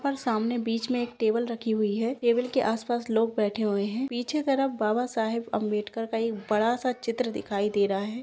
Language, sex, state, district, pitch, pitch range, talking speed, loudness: Hindi, female, Bihar, Jahanabad, 230 Hz, 215-245 Hz, 210 wpm, -27 LUFS